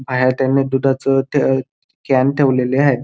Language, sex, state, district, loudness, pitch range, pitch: Marathi, male, Maharashtra, Dhule, -16 LUFS, 130-135 Hz, 135 Hz